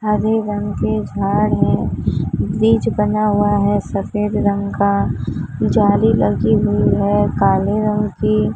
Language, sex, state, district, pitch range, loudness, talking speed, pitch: Hindi, female, Maharashtra, Mumbai Suburban, 200-210 Hz, -17 LUFS, 135 wpm, 205 Hz